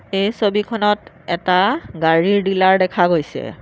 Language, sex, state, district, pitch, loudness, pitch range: Assamese, female, Assam, Sonitpur, 190 Hz, -17 LUFS, 175-205 Hz